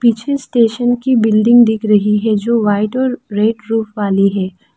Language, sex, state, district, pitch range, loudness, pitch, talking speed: Hindi, female, Arunachal Pradesh, Lower Dibang Valley, 210-240 Hz, -14 LUFS, 225 Hz, 175 wpm